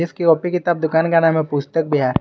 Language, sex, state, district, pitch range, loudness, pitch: Hindi, male, Jharkhand, Garhwa, 150-170 Hz, -17 LUFS, 160 Hz